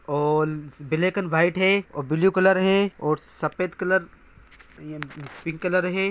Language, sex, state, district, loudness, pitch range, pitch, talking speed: Hindi, male, Bihar, Araria, -23 LUFS, 155-190 Hz, 170 Hz, 145 wpm